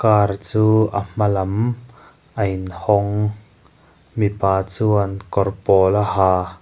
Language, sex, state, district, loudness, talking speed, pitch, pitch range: Mizo, male, Mizoram, Aizawl, -19 LUFS, 120 wpm, 100 Hz, 95-110 Hz